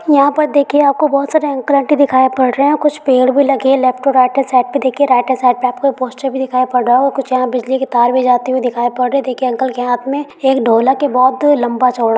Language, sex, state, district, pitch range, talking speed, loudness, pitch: Hindi, female, Bihar, Gaya, 250-280 Hz, 290 wpm, -13 LUFS, 260 Hz